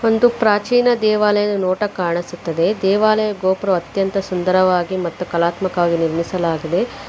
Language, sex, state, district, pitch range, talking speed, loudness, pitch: Kannada, female, Karnataka, Bangalore, 175-210 Hz, 100 wpm, -18 LUFS, 185 Hz